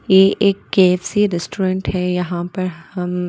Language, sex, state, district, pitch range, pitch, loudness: Hindi, female, Bihar, Patna, 180-190 Hz, 185 Hz, -18 LUFS